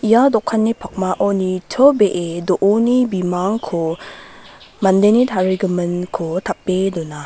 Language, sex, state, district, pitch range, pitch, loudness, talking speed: Garo, female, Meghalaya, West Garo Hills, 180-220 Hz, 190 Hz, -17 LUFS, 85 wpm